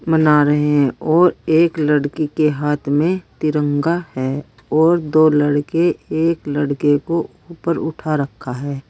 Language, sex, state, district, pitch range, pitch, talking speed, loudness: Hindi, female, Uttar Pradesh, Saharanpur, 145-165 Hz, 150 Hz, 140 wpm, -17 LUFS